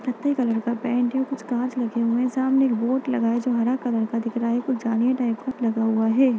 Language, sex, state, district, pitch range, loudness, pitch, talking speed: Hindi, female, Bihar, Bhagalpur, 230-255 Hz, -23 LUFS, 245 Hz, 275 wpm